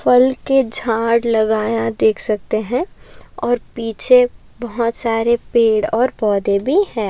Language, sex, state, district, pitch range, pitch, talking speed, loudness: Hindi, female, Maharashtra, Aurangabad, 215-245 Hz, 230 Hz, 135 wpm, -16 LUFS